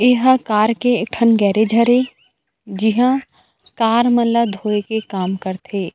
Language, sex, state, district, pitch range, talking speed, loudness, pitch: Chhattisgarhi, female, Chhattisgarh, Rajnandgaon, 205-245 Hz, 160 wpm, -17 LUFS, 225 Hz